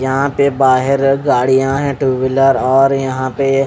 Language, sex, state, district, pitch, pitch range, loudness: Hindi, male, Odisha, Khordha, 135 Hz, 130-135 Hz, -13 LUFS